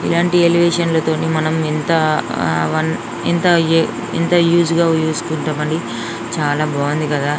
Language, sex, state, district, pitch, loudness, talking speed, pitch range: Telugu, female, Andhra Pradesh, Srikakulam, 160 Hz, -16 LUFS, 120 wpm, 150-170 Hz